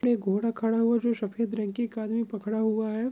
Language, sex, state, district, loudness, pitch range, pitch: Hindi, female, Andhra Pradesh, Krishna, -28 LUFS, 215-235 Hz, 225 Hz